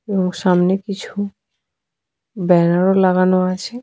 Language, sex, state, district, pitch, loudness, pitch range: Bengali, female, Jharkhand, Sahebganj, 185 Hz, -17 LUFS, 180-200 Hz